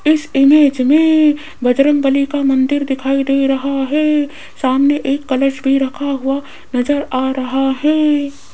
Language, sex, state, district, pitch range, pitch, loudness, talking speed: Hindi, female, Rajasthan, Jaipur, 270-295 Hz, 275 Hz, -15 LUFS, 140 wpm